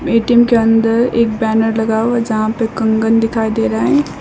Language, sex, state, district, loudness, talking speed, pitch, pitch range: Hindi, female, West Bengal, Alipurduar, -14 LUFS, 200 wpm, 225 Hz, 220-235 Hz